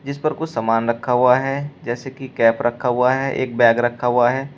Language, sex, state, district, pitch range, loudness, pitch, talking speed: Hindi, male, Uttar Pradesh, Shamli, 120-135 Hz, -19 LUFS, 125 Hz, 235 wpm